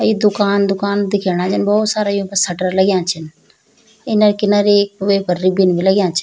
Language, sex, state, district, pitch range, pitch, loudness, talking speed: Garhwali, female, Uttarakhand, Tehri Garhwal, 185-205 Hz, 200 Hz, -15 LUFS, 185 wpm